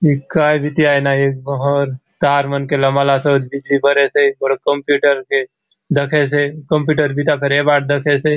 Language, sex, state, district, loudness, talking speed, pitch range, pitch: Halbi, male, Chhattisgarh, Bastar, -15 LUFS, 180 wpm, 140-145 Hz, 140 Hz